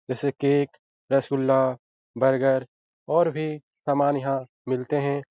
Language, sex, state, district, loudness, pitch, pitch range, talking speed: Hindi, male, Bihar, Jahanabad, -24 LUFS, 135 Hz, 130-145 Hz, 115 wpm